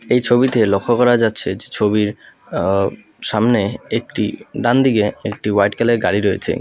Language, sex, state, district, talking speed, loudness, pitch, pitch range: Bengali, male, West Bengal, Alipurduar, 155 wpm, -17 LUFS, 115 Hz, 105-120 Hz